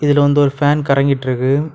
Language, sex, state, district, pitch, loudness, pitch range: Tamil, male, Tamil Nadu, Kanyakumari, 145 Hz, -15 LUFS, 135-145 Hz